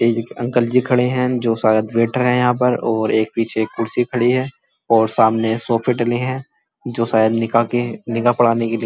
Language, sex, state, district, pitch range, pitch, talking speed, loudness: Hindi, male, Uttar Pradesh, Muzaffarnagar, 115-125 Hz, 115 Hz, 210 wpm, -17 LUFS